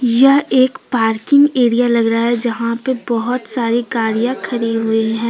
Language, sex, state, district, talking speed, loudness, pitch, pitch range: Hindi, female, Jharkhand, Deoghar, 170 wpm, -15 LUFS, 235 Hz, 230-255 Hz